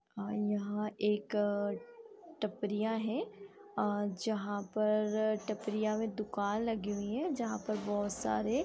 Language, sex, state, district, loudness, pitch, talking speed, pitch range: Hindi, female, Bihar, East Champaran, -35 LUFS, 215 Hz, 130 wpm, 205-220 Hz